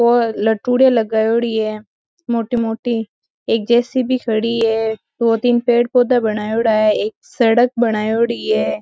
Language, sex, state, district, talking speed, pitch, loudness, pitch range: Marwari, female, Rajasthan, Nagaur, 135 wpm, 230 Hz, -17 LUFS, 220-240 Hz